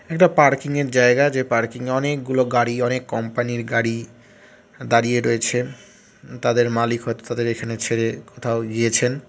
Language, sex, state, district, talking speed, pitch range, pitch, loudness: Bengali, male, West Bengal, Jalpaiguri, 150 wpm, 115-130 Hz, 120 Hz, -20 LUFS